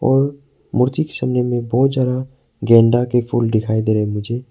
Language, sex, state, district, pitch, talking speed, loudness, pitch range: Hindi, male, Arunachal Pradesh, Papum Pare, 125 Hz, 185 wpm, -17 LUFS, 115-130 Hz